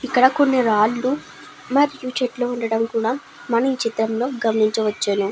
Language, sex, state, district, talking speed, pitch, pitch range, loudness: Telugu, female, Andhra Pradesh, Srikakulam, 145 wpm, 240 Hz, 225-260 Hz, -20 LUFS